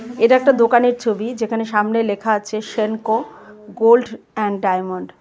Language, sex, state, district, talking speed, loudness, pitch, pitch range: Bengali, female, Tripura, West Tripura, 150 wpm, -18 LUFS, 220 Hz, 210-230 Hz